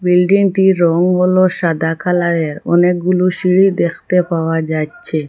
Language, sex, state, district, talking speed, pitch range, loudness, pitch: Bengali, female, Assam, Hailakandi, 115 wpm, 165-185 Hz, -14 LUFS, 180 Hz